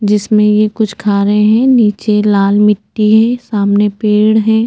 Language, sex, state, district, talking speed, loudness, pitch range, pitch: Hindi, female, Chhattisgarh, Bastar, 180 wpm, -11 LUFS, 205-220 Hz, 210 Hz